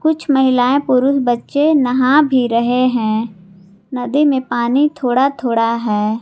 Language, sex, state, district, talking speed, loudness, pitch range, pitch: Hindi, female, Jharkhand, Garhwa, 135 wpm, -15 LUFS, 230-275 Hz, 250 Hz